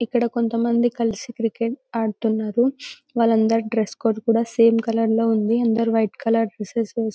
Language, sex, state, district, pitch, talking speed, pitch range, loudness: Telugu, male, Telangana, Karimnagar, 230 Hz, 175 wpm, 225-235 Hz, -21 LUFS